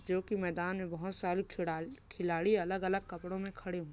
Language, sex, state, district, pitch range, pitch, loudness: Hindi, male, Chhattisgarh, Korba, 175-190 Hz, 185 Hz, -35 LUFS